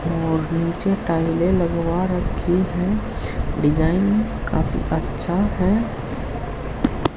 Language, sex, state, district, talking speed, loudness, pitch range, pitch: Hindi, male, Haryana, Jhajjar, 85 wpm, -22 LUFS, 165-185 Hz, 175 Hz